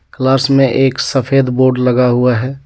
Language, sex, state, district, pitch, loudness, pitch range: Hindi, male, Jharkhand, Deoghar, 130 Hz, -12 LUFS, 125-135 Hz